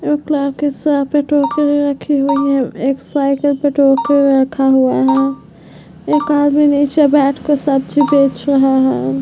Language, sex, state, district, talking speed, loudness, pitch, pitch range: Hindi, female, Bihar, Vaishali, 130 wpm, -14 LUFS, 285 Hz, 270-295 Hz